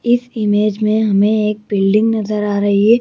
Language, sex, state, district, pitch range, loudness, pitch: Hindi, female, Madhya Pradesh, Bhopal, 205-220 Hz, -15 LUFS, 210 Hz